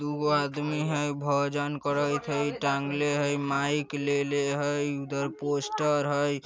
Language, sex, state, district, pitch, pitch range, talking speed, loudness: Bajjika, male, Bihar, Vaishali, 145 Hz, 140-145 Hz, 140 wpm, -28 LUFS